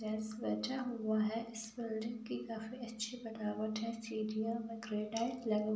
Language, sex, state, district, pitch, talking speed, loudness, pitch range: Hindi, female, Uttar Pradesh, Budaun, 220 Hz, 175 wpm, -40 LUFS, 215-230 Hz